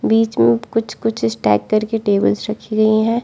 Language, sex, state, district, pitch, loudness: Hindi, female, Arunachal Pradesh, Lower Dibang Valley, 215 Hz, -17 LUFS